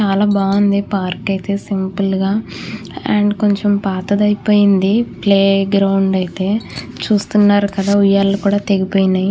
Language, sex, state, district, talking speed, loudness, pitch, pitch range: Telugu, female, Andhra Pradesh, Krishna, 115 wpm, -15 LUFS, 200 Hz, 195-205 Hz